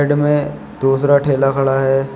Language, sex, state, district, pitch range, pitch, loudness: Hindi, male, Uttar Pradesh, Shamli, 135-145 Hz, 135 Hz, -15 LUFS